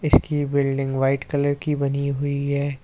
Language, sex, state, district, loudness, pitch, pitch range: Hindi, male, Uttar Pradesh, Lucknow, -22 LUFS, 140 Hz, 140-145 Hz